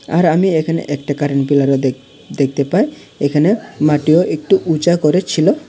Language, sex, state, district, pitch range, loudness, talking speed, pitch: Bengali, male, Tripura, Unakoti, 145-175 Hz, -15 LUFS, 135 wpm, 150 Hz